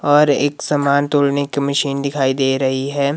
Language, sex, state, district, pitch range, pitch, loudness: Hindi, male, Himachal Pradesh, Shimla, 140-145 Hz, 140 Hz, -17 LUFS